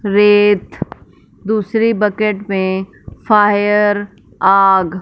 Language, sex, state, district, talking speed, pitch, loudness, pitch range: Hindi, female, Punjab, Fazilka, 85 wpm, 205 Hz, -13 LUFS, 195-210 Hz